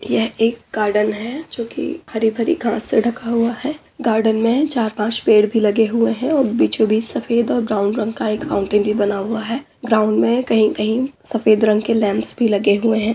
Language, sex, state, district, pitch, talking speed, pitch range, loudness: Hindi, female, Uttar Pradesh, Budaun, 225 Hz, 200 wpm, 215-235 Hz, -18 LUFS